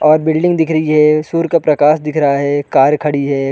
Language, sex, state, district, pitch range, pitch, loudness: Hindi, male, Chhattisgarh, Bilaspur, 145-160 Hz, 150 Hz, -13 LUFS